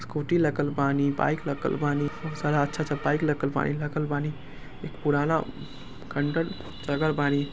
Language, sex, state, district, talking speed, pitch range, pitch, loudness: Angika, male, Bihar, Samastipur, 150 wpm, 145-150 Hz, 145 Hz, -27 LUFS